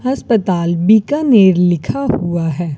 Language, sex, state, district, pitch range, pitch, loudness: Hindi, female, Rajasthan, Bikaner, 170-220 Hz, 180 Hz, -14 LUFS